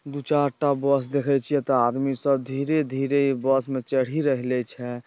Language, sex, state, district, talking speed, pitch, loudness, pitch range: Angika, male, Bihar, Purnia, 180 wpm, 135 Hz, -24 LUFS, 130-140 Hz